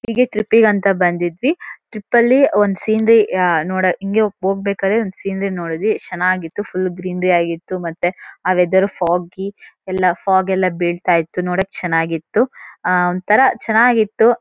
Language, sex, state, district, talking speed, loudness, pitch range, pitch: Kannada, female, Karnataka, Shimoga, 135 wpm, -17 LUFS, 180-220 Hz, 190 Hz